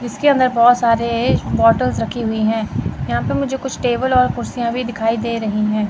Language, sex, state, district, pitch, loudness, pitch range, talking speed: Hindi, female, Chandigarh, Chandigarh, 235 Hz, -17 LUFS, 220-250 Hz, 205 wpm